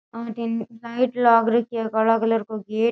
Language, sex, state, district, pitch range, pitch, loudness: Rajasthani, female, Rajasthan, Nagaur, 225-235 Hz, 230 Hz, -21 LUFS